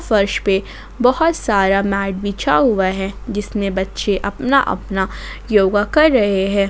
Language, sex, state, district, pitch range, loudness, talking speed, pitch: Hindi, female, Jharkhand, Ranchi, 195-235 Hz, -17 LUFS, 150 wpm, 200 Hz